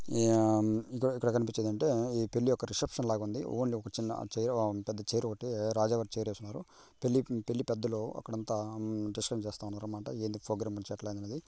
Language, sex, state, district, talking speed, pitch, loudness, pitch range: Telugu, male, Telangana, Karimnagar, 160 wpm, 110 Hz, -34 LUFS, 105-120 Hz